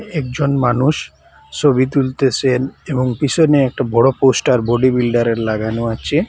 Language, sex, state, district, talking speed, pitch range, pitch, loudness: Bengali, male, Assam, Hailakandi, 125 wpm, 120-140 Hz, 130 Hz, -16 LUFS